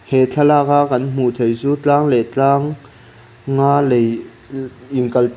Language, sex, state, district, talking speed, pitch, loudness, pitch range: Mizo, male, Mizoram, Aizawl, 165 wpm, 135 Hz, -16 LUFS, 120-145 Hz